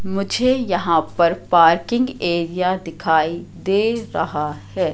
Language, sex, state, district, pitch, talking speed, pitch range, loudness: Hindi, female, Madhya Pradesh, Katni, 175 Hz, 110 wpm, 165-200 Hz, -19 LUFS